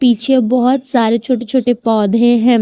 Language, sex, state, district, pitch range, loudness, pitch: Hindi, female, Jharkhand, Ranchi, 230-255 Hz, -13 LUFS, 245 Hz